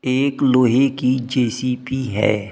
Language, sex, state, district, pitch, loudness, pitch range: Hindi, male, Uttar Pradesh, Shamli, 130 Hz, -18 LUFS, 125-130 Hz